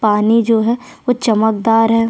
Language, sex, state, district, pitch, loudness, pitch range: Hindi, female, Chhattisgarh, Sukma, 225 Hz, -14 LUFS, 220-230 Hz